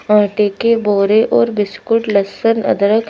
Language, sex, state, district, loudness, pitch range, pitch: Hindi, female, Madhya Pradesh, Bhopal, -14 LUFS, 200-225 Hz, 210 Hz